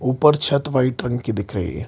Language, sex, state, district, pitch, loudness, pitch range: Hindi, male, Bihar, Lakhisarai, 125 Hz, -20 LUFS, 110-140 Hz